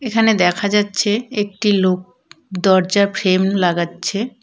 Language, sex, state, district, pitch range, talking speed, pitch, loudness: Bengali, female, West Bengal, Cooch Behar, 185-210 Hz, 110 wpm, 200 Hz, -17 LUFS